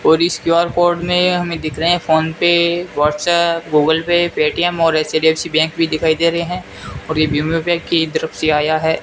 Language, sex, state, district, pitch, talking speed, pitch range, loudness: Hindi, male, Rajasthan, Bikaner, 165 Hz, 195 wpm, 160-175 Hz, -16 LUFS